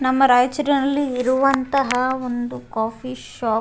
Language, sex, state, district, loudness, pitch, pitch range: Kannada, female, Karnataka, Raichur, -20 LUFS, 255 Hz, 245-270 Hz